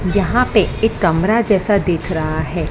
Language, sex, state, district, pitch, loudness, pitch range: Hindi, female, Maharashtra, Mumbai Suburban, 190 Hz, -16 LUFS, 165-215 Hz